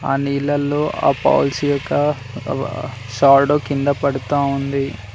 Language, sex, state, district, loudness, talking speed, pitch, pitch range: Telugu, male, Telangana, Mahabubabad, -18 LUFS, 95 wpm, 140 Hz, 135-145 Hz